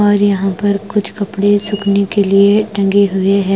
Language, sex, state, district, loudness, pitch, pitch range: Hindi, female, Punjab, Kapurthala, -13 LUFS, 200 Hz, 195-205 Hz